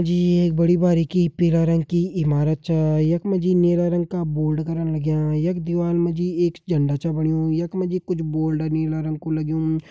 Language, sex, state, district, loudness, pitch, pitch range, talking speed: Hindi, male, Uttarakhand, Uttarkashi, -21 LUFS, 165 Hz, 155-175 Hz, 195 wpm